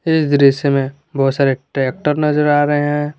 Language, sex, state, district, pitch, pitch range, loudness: Hindi, male, Jharkhand, Garhwa, 145 Hz, 135-150 Hz, -16 LUFS